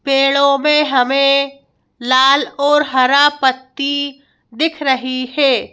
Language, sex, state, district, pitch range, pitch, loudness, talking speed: Hindi, female, Madhya Pradesh, Bhopal, 260-285 Hz, 275 Hz, -14 LUFS, 105 wpm